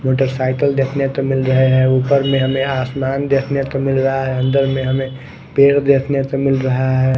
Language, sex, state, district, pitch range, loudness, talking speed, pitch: Hindi, male, Bihar, West Champaran, 130-135 Hz, -16 LUFS, 200 wpm, 135 Hz